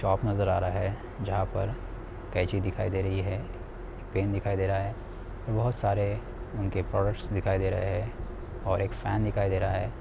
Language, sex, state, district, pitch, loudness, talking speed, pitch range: Hindi, male, Bihar, Sitamarhi, 100 Hz, -30 LUFS, 200 wpm, 95-105 Hz